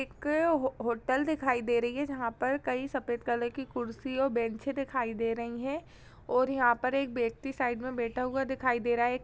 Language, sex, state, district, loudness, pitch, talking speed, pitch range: Hindi, female, Uttar Pradesh, Jyotiba Phule Nagar, -31 LUFS, 255 Hz, 225 wpm, 235-270 Hz